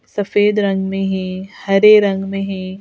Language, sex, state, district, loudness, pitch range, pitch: Hindi, female, Madhya Pradesh, Bhopal, -15 LUFS, 190-205 Hz, 195 Hz